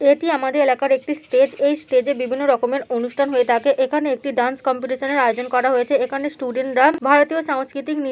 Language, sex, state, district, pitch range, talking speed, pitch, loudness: Bengali, female, West Bengal, Dakshin Dinajpur, 255-280 Hz, 205 wpm, 270 Hz, -19 LUFS